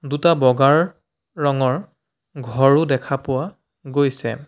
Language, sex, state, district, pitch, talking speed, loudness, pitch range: Assamese, male, Assam, Sonitpur, 140 Hz, 95 wpm, -19 LUFS, 130-150 Hz